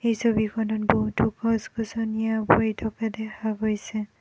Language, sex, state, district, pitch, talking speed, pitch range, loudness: Assamese, female, Assam, Kamrup Metropolitan, 220 Hz, 115 wpm, 215-225 Hz, -25 LUFS